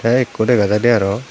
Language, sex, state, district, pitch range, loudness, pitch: Chakma, male, Tripura, Dhalai, 105-120 Hz, -15 LUFS, 115 Hz